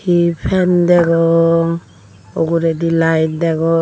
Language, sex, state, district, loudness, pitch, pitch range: Chakma, female, Tripura, Unakoti, -14 LUFS, 165 Hz, 165-170 Hz